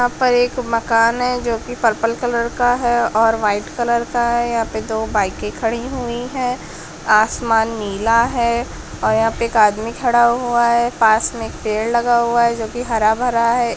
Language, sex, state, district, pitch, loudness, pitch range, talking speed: Hindi, female, Bihar, Saran, 235 Hz, -17 LUFS, 225-240 Hz, 200 wpm